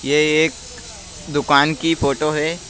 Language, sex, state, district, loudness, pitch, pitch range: Hindi, male, Madhya Pradesh, Bhopal, -18 LUFS, 150 Hz, 140-155 Hz